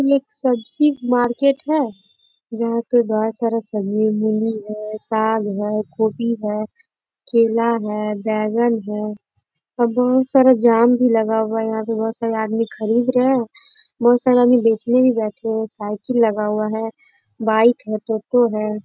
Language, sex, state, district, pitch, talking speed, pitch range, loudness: Hindi, female, Bihar, Bhagalpur, 225 Hz, 160 wpm, 215-245 Hz, -18 LUFS